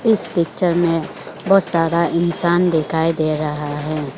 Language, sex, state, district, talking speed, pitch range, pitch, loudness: Hindi, female, Arunachal Pradesh, Lower Dibang Valley, 145 wpm, 155-175 Hz, 170 Hz, -17 LUFS